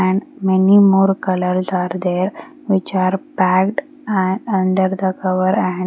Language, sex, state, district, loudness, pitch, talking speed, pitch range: English, female, Haryana, Rohtak, -17 LUFS, 190 Hz, 155 wpm, 185-195 Hz